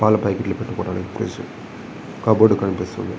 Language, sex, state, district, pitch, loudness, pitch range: Telugu, male, Andhra Pradesh, Visakhapatnam, 100 Hz, -20 LUFS, 90-110 Hz